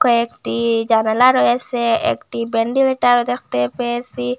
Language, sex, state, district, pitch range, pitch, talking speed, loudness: Bengali, female, Assam, Hailakandi, 225-245 Hz, 235 Hz, 95 wpm, -17 LUFS